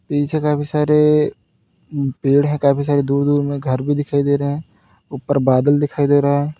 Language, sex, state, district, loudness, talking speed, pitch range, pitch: Hindi, male, Uttar Pradesh, Lalitpur, -17 LUFS, 200 wpm, 140-145 Hz, 145 Hz